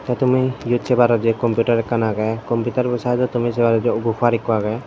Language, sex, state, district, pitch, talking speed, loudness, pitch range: Chakma, male, Tripura, Dhalai, 120 Hz, 185 wpm, -19 LUFS, 115-125 Hz